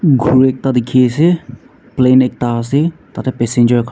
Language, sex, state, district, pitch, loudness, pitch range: Nagamese, male, Nagaland, Dimapur, 130 Hz, -13 LUFS, 120-135 Hz